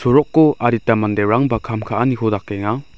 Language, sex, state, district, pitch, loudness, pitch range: Garo, male, Meghalaya, South Garo Hills, 115 Hz, -17 LUFS, 105-130 Hz